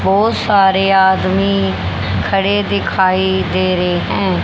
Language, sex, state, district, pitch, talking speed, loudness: Hindi, female, Haryana, Charkhi Dadri, 190 Hz, 110 wpm, -14 LUFS